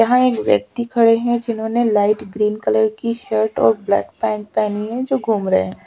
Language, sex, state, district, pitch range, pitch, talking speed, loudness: Hindi, female, Chhattisgarh, Raipur, 210-235 Hz, 220 Hz, 195 wpm, -18 LUFS